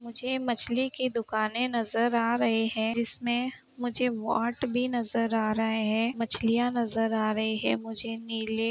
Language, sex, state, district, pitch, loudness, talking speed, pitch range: Hindi, female, Uttar Pradesh, Budaun, 230 Hz, -28 LUFS, 165 wpm, 225-245 Hz